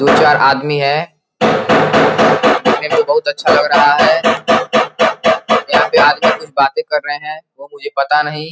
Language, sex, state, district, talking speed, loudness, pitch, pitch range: Hindi, male, Uttar Pradesh, Gorakhpur, 150 wpm, -12 LUFS, 150 Hz, 145-165 Hz